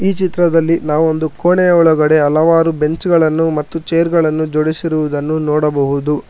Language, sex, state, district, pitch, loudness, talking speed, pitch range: Kannada, male, Karnataka, Bangalore, 160 Hz, -14 LUFS, 135 wpm, 150-165 Hz